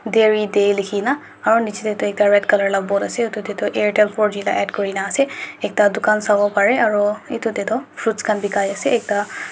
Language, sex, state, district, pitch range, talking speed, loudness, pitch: Nagamese, male, Nagaland, Dimapur, 205-220 Hz, 210 wpm, -18 LUFS, 210 Hz